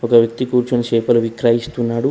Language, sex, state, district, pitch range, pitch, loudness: Telugu, male, Telangana, Hyderabad, 115-125 Hz, 120 Hz, -17 LUFS